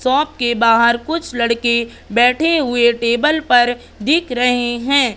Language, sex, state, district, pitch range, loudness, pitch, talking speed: Hindi, female, Madhya Pradesh, Katni, 235-280 Hz, -15 LUFS, 245 Hz, 140 wpm